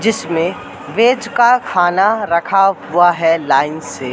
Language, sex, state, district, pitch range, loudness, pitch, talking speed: Hindi, male, Madhya Pradesh, Katni, 165-220 Hz, -14 LUFS, 175 Hz, 130 wpm